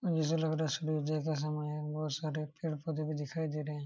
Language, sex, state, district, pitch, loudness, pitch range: Hindi, male, Jharkhand, Jamtara, 155 Hz, -35 LUFS, 150-160 Hz